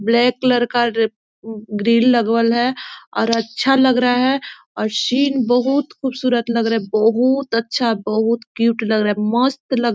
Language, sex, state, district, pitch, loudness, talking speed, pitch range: Hindi, female, Chhattisgarh, Korba, 235 Hz, -17 LUFS, 175 wpm, 225-255 Hz